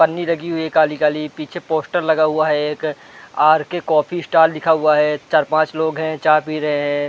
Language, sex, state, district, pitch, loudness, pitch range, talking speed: Hindi, male, Chhattisgarh, Rajnandgaon, 155 Hz, -17 LUFS, 150-160 Hz, 210 wpm